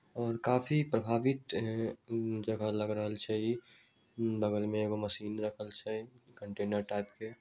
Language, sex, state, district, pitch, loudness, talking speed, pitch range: Maithili, male, Bihar, Samastipur, 110 Hz, -35 LUFS, 145 wpm, 105-115 Hz